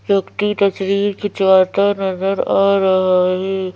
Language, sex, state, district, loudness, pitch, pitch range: Hindi, female, Madhya Pradesh, Bhopal, -16 LUFS, 195 Hz, 190-200 Hz